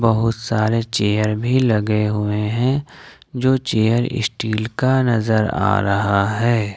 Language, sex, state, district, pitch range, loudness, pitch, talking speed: Hindi, male, Jharkhand, Ranchi, 105-120 Hz, -18 LUFS, 110 Hz, 135 wpm